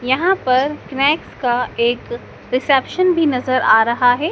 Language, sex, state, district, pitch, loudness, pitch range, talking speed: Hindi, male, Madhya Pradesh, Dhar, 260 Hz, -16 LUFS, 245-310 Hz, 155 wpm